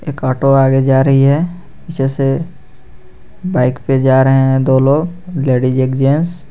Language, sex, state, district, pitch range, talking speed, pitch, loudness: Hindi, male, Jharkhand, Garhwa, 130-150 Hz, 165 wpm, 135 Hz, -13 LUFS